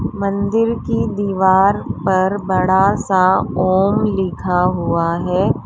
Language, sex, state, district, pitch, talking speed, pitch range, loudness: Hindi, female, Uttar Pradesh, Lalitpur, 190 Hz, 105 wpm, 185-200 Hz, -16 LUFS